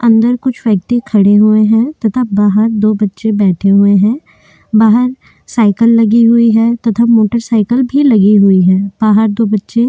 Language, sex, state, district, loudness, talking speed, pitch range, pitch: Hindi, female, Chhattisgarh, Korba, -10 LUFS, 165 wpm, 210-235 Hz, 220 Hz